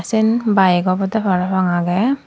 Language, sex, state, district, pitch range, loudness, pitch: Chakma, female, Tripura, Dhalai, 180-220 Hz, -16 LUFS, 190 Hz